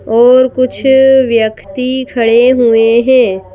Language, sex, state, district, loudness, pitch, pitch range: Hindi, female, Madhya Pradesh, Bhopal, -9 LUFS, 250 Hz, 230-260 Hz